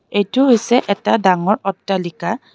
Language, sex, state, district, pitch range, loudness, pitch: Assamese, female, Assam, Kamrup Metropolitan, 190-230 Hz, -16 LUFS, 205 Hz